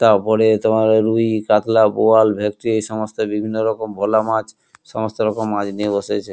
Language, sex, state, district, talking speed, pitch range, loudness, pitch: Bengali, male, West Bengal, Kolkata, 160 wpm, 105-110 Hz, -17 LUFS, 110 Hz